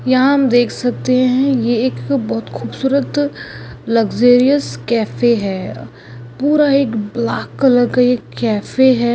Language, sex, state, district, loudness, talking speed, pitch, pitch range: Hindi, female, Goa, North and South Goa, -15 LUFS, 125 wpm, 245 Hz, 210-260 Hz